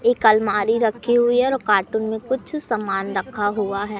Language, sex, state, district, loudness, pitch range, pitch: Hindi, male, Madhya Pradesh, Katni, -20 LUFS, 205-240 Hz, 220 Hz